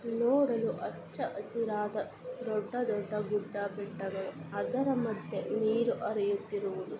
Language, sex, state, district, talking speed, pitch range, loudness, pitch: Kannada, female, Karnataka, Chamarajanagar, 95 wpm, 205-235 Hz, -34 LUFS, 215 Hz